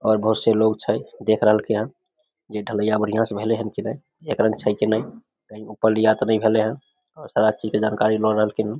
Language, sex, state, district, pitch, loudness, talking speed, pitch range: Maithili, male, Bihar, Samastipur, 110 Hz, -21 LUFS, 240 wpm, 105-115 Hz